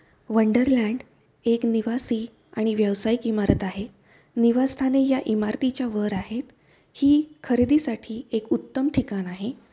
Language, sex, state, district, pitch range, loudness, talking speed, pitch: Marathi, female, Maharashtra, Pune, 220-260 Hz, -24 LUFS, 110 wpm, 235 Hz